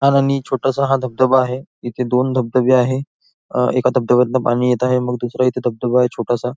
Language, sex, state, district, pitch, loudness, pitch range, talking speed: Marathi, male, Maharashtra, Nagpur, 125 Hz, -17 LUFS, 125-130 Hz, 190 wpm